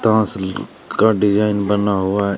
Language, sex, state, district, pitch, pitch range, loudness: Hindi, male, Uttar Pradesh, Shamli, 105 Hz, 100-105 Hz, -17 LUFS